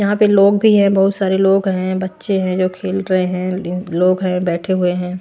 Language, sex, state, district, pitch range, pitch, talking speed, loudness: Hindi, female, Maharashtra, Washim, 185-195 Hz, 185 Hz, 230 wpm, -16 LUFS